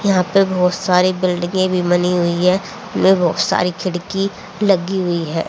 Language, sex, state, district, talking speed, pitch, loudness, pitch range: Hindi, female, Haryana, Rohtak, 175 wpm, 185 Hz, -17 LUFS, 175-190 Hz